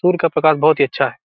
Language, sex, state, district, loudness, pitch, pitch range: Hindi, male, Bihar, Gopalganj, -16 LUFS, 155 Hz, 140-165 Hz